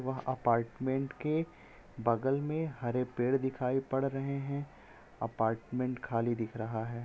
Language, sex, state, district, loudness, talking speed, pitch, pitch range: Hindi, male, Uttar Pradesh, Etah, -34 LUFS, 135 wpm, 130 Hz, 115-135 Hz